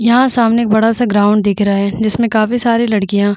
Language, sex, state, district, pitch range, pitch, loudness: Hindi, female, Chhattisgarh, Bastar, 205-235 Hz, 220 Hz, -13 LUFS